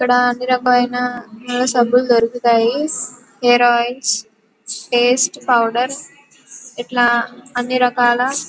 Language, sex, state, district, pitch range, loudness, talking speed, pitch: Telugu, female, Andhra Pradesh, Guntur, 240-250 Hz, -16 LUFS, 80 wpm, 245 Hz